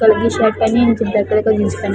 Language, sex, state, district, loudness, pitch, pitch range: Hindi, female, Chhattisgarh, Balrampur, -15 LUFS, 220 Hz, 215-225 Hz